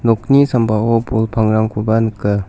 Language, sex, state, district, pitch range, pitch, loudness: Garo, male, Meghalaya, South Garo Hills, 110-115 Hz, 110 Hz, -15 LUFS